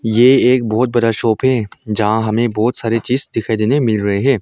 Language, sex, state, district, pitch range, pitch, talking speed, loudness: Hindi, male, Arunachal Pradesh, Longding, 110-125 Hz, 115 Hz, 215 wpm, -15 LUFS